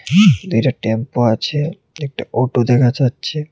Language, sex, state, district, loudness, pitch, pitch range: Bengali, male, Tripura, West Tripura, -16 LUFS, 125 Hz, 120-150 Hz